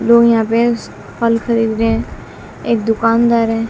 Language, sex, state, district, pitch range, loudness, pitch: Hindi, female, Bihar, West Champaran, 225-235 Hz, -14 LUFS, 230 Hz